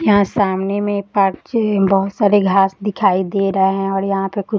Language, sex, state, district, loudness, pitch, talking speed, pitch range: Hindi, female, Bihar, Sitamarhi, -16 LUFS, 195 Hz, 195 wpm, 195-205 Hz